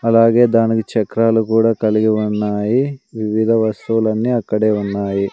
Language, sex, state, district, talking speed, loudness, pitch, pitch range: Telugu, male, Andhra Pradesh, Sri Satya Sai, 115 wpm, -16 LUFS, 110 Hz, 105-115 Hz